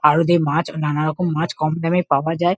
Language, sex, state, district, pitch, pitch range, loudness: Bengali, female, West Bengal, Kolkata, 160 Hz, 150-170 Hz, -19 LUFS